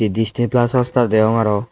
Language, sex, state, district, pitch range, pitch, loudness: Chakma, male, Tripura, Dhalai, 110-120 Hz, 115 Hz, -16 LUFS